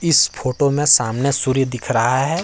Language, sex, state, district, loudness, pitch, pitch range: Hindi, male, Jharkhand, Ranchi, -17 LUFS, 135 Hz, 125-145 Hz